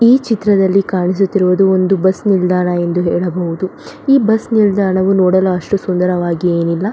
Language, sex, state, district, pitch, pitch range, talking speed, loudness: Kannada, female, Karnataka, Belgaum, 190 Hz, 180-200 Hz, 130 wpm, -14 LUFS